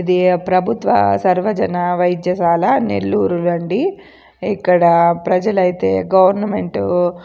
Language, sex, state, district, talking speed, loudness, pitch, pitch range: Telugu, female, Andhra Pradesh, Chittoor, 85 wpm, -15 LUFS, 180 Hz, 170-190 Hz